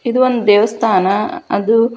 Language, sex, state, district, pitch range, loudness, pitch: Kannada, female, Karnataka, Dharwad, 210-240 Hz, -14 LUFS, 230 Hz